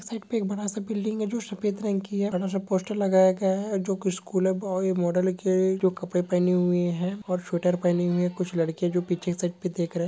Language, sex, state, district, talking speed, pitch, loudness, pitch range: Hindi, male, Jharkhand, Jamtara, 220 wpm, 185 Hz, -26 LUFS, 180-200 Hz